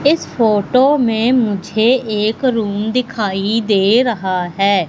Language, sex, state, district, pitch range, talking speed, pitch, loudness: Hindi, female, Madhya Pradesh, Katni, 200-245 Hz, 125 wpm, 220 Hz, -15 LUFS